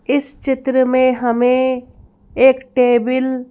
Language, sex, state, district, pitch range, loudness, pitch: Hindi, female, Madhya Pradesh, Bhopal, 250-260 Hz, -15 LUFS, 255 Hz